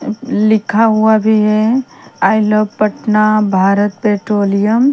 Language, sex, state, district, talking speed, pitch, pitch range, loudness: Hindi, female, Bihar, Patna, 120 wpm, 215 Hz, 210-220 Hz, -13 LUFS